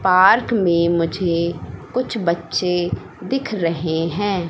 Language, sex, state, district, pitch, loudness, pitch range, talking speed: Hindi, female, Madhya Pradesh, Katni, 175 Hz, -19 LUFS, 170-205 Hz, 105 wpm